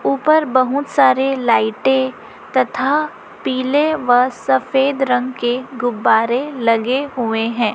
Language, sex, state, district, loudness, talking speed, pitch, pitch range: Hindi, female, Chhattisgarh, Raipur, -17 LUFS, 110 wpm, 255 Hz, 240-270 Hz